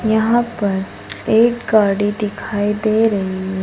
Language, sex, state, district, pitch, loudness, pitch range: Hindi, female, Uttar Pradesh, Saharanpur, 210 Hz, -17 LUFS, 200-220 Hz